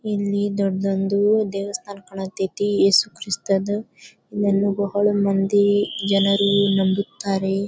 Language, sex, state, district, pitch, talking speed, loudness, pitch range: Kannada, female, Karnataka, Bijapur, 200 Hz, 85 wpm, -20 LUFS, 195-205 Hz